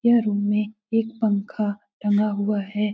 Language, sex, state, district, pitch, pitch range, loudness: Hindi, female, Bihar, Lakhisarai, 210 Hz, 205-220 Hz, -23 LUFS